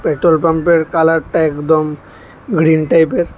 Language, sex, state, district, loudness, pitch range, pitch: Bengali, male, Tripura, West Tripura, -13 LUFS, 155-165 Hz, 160 Hz